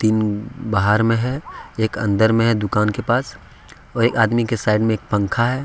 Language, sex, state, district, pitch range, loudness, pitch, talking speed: Hindi, male, Jharkhand, Deoghar, 105-120 Hz, -19 LUFS, 110 Hz, 225 wpm